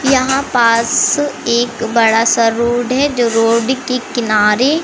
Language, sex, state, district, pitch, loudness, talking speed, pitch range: Hindi, female, Madhya Pradesh, Umaria, 240 Hz, -13 LUFS, 135 wpm, 230-265 Hz